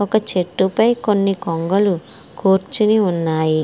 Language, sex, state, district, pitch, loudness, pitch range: Telugu, female, Andhra Pradesh, Srikakulam, 190 Hz, -17 LUFS, 170-210 Hz